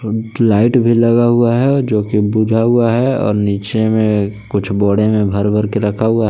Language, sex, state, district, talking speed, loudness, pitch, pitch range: Hindi, male, Jharkhand, Palamu, 220 wpm, -14 LUFS, 110 Hz, 105-115 Hz